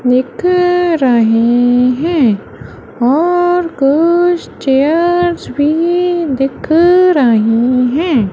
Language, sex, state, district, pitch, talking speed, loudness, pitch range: Hindi, female, Madhya Pradesh, Umaria, 290 Hz, 70 wpm, -12 LUFS, 250-345 Hz